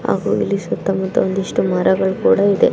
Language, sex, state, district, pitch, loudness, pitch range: Kannada, female, Karnataka, Belgaum, 190 Hz, -17 LUFS, 190-195 Hz